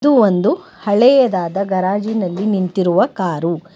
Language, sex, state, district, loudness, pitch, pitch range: Kannada, female, Karnataka, Bangalore, -16 LUFS, 195 Hz, 185-225 Hz